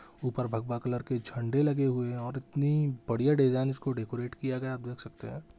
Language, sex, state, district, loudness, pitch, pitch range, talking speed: Hindi, male, Bihar, Saran, -31 LUFS, 130 Hz, 120-135 Hz, 225 wpm